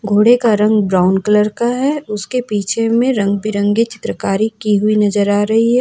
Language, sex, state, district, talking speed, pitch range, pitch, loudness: Hindi, female, Jharkhand, Ranchi, 185 wpm, 205-230 Hz, 215 Hz, -15 LUFS